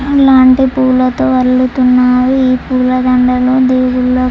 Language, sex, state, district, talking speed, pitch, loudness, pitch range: Telugu, female, Andhra Pradesh, Chittoor, 85 wpm, 255 Hz, -10 LUFS, 255-260 Hz